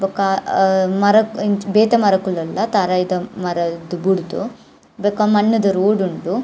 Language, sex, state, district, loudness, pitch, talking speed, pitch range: Tulu, female, Karnataka, Dakshina Kannada, -17 LUFS, 195 Hz, 120 wpm, 185-205 Hz